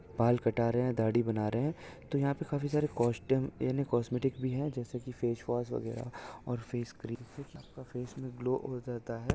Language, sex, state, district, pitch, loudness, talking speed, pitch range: Hindi, male, Maharashtra, Solapur, 125 Hz, -34 LUFS, 185 wpm, 115-135 Hz